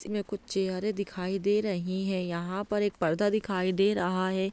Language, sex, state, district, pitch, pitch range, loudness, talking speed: Hindi, female, Bihar, Jahanabad, 195 Hz, 185-205 Hz, -29 LUFS, 200 wpm